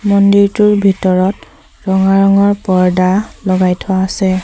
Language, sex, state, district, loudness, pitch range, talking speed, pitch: Assamese, female, Assam, Sonitpur, -12 LUFS, 185-200 Hz, 110 wpm, 195 Hz